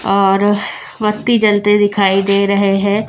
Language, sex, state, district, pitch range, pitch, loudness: Hindi, female, Bihar, Patna, 200-210 Hz, 205 Hz, -13 LUFS